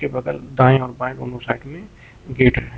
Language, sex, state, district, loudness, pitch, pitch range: Hindi, male, Uttar Pradesh, Lucknow, -19 LUFS, 130 Hz, 125-130 Hz